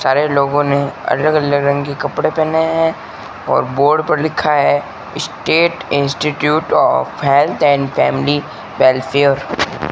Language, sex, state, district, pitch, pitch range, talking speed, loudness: Hindi, male, Rajasthan, Bikaner, 145 Hz, 140-155 Hz, 140 wpm, -15 LUFS